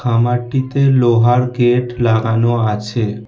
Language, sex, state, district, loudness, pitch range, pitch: Bengali, male, West Bengal, Alipurduar, -15 LUFS, 115-125 Hz, 120 Hz